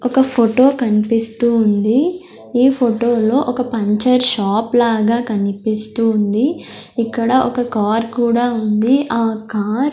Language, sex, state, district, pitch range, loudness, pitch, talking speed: Telugu, female, Andhra Pradesh, Sri Satya Sai, 220-250 Hz, -15 LUFS, 230 Hz, 115 wpm